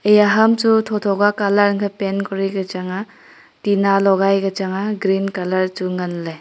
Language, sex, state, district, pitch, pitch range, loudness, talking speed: Wancho, female, Arunachal Pradesh, Longding, 195 Hz, 190-205 Hz, -18 LUFS, 180 wpm